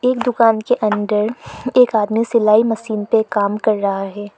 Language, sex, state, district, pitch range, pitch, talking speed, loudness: Hindi, female, Arunachal Pradesh, Lower Dibang Valley, 210-230 Hz, 215 Hz, 180 wpm, -16 LUFS